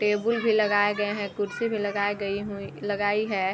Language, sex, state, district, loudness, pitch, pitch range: Hindi, female, Bihar, Sitamarhi, -26 LUFS, 205 Hz, 205-210 Hz